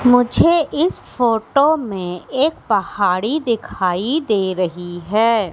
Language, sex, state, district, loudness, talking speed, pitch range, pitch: Hindi, female, Madhya Pradesh, Katni, -18 LUFS, 110 wpm, 185-285 Hz, 230 Hz